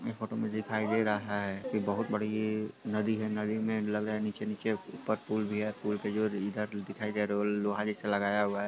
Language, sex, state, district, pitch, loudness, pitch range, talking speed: Hindi, male, Bihar, Sitamarhi, 105 Hz, -33 LUFS, 105-110 Hz, 250 wpm